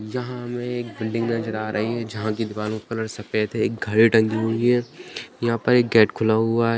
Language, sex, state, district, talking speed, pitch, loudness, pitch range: Hindi, male, Bihar, Jamui, 240 wpm, 115 Hz, -22 LUFS, 110-120 Hz